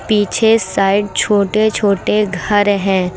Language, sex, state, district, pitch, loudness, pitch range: Hindi, female, Uttar Pradesh, Lucknow, 205 Hz, -14 LUFS, 195-210 Hz